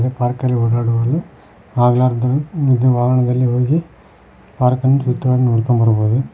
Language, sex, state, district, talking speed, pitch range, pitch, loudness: Kannada, male, Karnataka, Koppal, 125 wpm, 120-130 Hz, 125 Hz, -16 LUFS